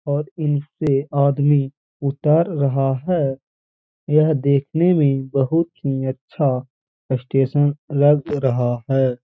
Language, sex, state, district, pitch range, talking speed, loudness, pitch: Hindi, male, Uttar Pradesh, Jalaun, 135-150 Hz, 105 wpm, -19 LUFS, 140 Hz